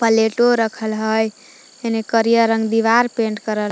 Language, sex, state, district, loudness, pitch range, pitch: Magahi, female, Jharkhand, Palamu, -17 LUFS, 220-230 Hz, 225 Hz